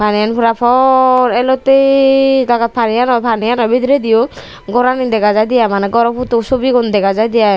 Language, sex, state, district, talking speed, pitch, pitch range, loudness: Chakma, female, Tripura, Dhalai, 175 wpm, 240 Hz, 225-255 Hz, -12 LUFS